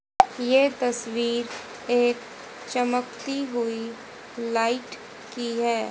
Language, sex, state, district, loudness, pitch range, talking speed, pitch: Hindi, female, Haryana, Charkhi Dadri, -25 LUFS, 230-250 Hz, 80 wpm, 240 Hz